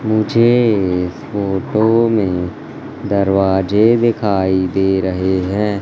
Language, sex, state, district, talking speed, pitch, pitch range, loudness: Hindi, male, Madhya Pradesh, Katni, 95 wpm, 100 Hz, 95-110 Hz, -15 LUFS